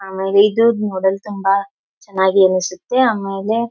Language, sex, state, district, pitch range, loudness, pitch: Kannada, female, Karnataka, Belgaum, 190-215 Hz, -16 LUFS, 195 Hz